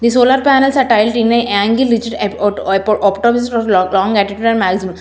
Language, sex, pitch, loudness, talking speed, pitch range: English, female, 225 Hz, -13 LUFS, 120 wpm, 200-235 Hz